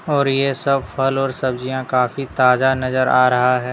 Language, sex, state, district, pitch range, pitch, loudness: Hindi, male, Jharkhand, Deoghar, 125-135 Hz, 130 Hz, -18 LUFS